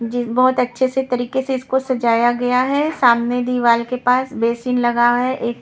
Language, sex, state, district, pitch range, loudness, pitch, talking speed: Hindi, female, Punjab, Kapurthala, 240-260 Hz, -17 LUFS, 250 Hz, 170 wpm